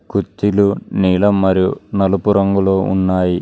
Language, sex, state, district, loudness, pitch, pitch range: Telugu, male, Telangana, Mahabubabad, -15 LUFS, 95 Hz, 95-100 Hz